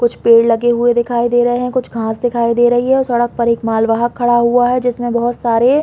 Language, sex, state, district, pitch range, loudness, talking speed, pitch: Hindi, female, Chhattisgarh, Balrampur, 235-245 Hz, -14 LUFS, 255 wpm, 240 Hz